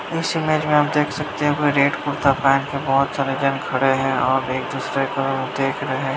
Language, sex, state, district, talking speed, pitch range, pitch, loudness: Hindi, male, Bihar, Saharsa, 235 wpm, 135-145 Hz, 140 Hz, -20 LUFS